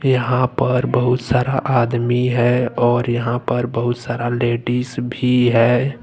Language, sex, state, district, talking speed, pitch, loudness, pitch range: Hindi, male, Jharkhand, Deoghar, 140 wpm, 125 Hz, -18 LUFS, 120-125 Hz